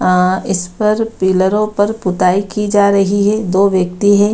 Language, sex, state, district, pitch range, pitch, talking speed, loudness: Hindi, female, Bihar, Kishanganj, 185-210 Hz, 200 Hz, 180 wpm, -14 LUFS